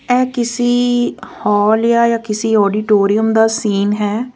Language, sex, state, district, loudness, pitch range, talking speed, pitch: Punjabi, female, Punjab, Fazilka, -14 LUFS, 210-240 Hz, 125 wpm, 225 Hz